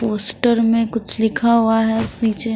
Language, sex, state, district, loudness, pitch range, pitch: Hindi, female, Punjab, Kapurthala, -17 LUFS, 225-230 Hz, 225 Hz